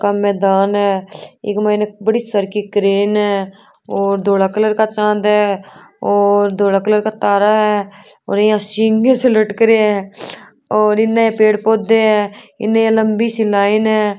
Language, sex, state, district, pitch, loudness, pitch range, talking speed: Marwari, female, Rajasthan, Churu, 210 Hz, -14 LUFS, 200-215 Hz, 155 wpm